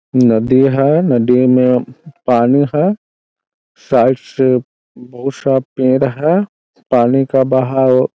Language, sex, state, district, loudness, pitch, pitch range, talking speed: Hindi, male, Bihar, Muzaffarpur, -13 LUFS, 130 Hz, 125-135 Hz, 110 wpm